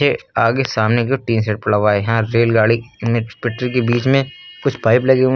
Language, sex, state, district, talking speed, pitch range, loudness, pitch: Hindi, male, Uttar Pradesh, Lucknow, 215 wpm, 115-130 Hz, -17 LUFS, 120 Hz